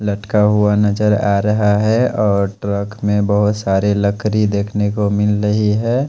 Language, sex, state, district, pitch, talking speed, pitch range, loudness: Hindi, male, Punjab, Pathankot, 105 Hz, 165 wpm, 100-105 Hz, -16 LUFS